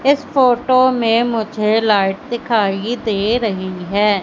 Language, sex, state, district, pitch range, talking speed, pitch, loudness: Hindi, female, Madhya Pradesh, Katni, 205-245 Hz, 125 wpm, 225 Hz, -16 LUFS